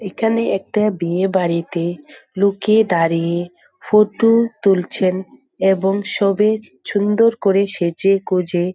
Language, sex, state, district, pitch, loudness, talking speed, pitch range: Bengali, female, West Bengal, Dakshin Dinajpur, 195 Hz, -17 LUFS, 95 wpm, 180-210 Hz